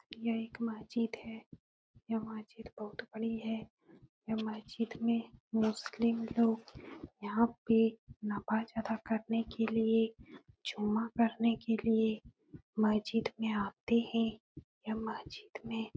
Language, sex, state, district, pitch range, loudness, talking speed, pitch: Hindi, female, Uttar Pradesh, Etah, 220-230 Hz, -35 LUFS, 125 wpm, 225 Hz